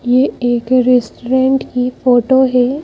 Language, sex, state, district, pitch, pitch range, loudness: Hindi, female, Madhya Pradesh, Bhopal, 250 Hz, 245-260 Hz, -13 LUFS